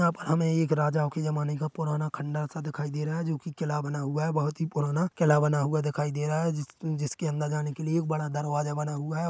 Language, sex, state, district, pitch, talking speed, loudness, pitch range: Hindi, male, Chhattisgarh, Korba, 150 Hz, 270 wpm, -29 LUFS, 150-160 Hz